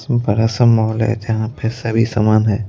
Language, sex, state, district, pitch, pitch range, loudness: Hindi, male, Madhya Pradesh, Bhopal, 110 Hz, 110-115 Hz, -16 LUFS